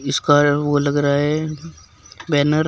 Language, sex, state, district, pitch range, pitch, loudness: Hindi, male, Uttar Pradesh, Shamli, 145-155 Hz, 145 Hz, -18 LUFS